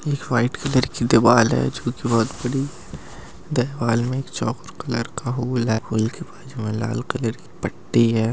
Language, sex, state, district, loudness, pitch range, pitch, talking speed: Angika, male, Bihar, Madhepura, -22 LUFS, 115-130 Hz, 120 Hz, 210 wpm